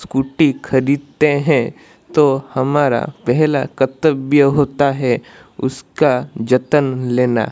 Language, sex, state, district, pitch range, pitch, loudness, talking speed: Hindi, female, Odisha, Malkangiri, 130-145 Hz, 135 Hz, -16 LUFS, 95 wpm